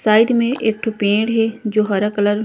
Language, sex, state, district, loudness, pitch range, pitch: Chhattisgarhi, female, Chhattisgarh, Korba, -17 LUFS, 210-225 Hz, 220 Hz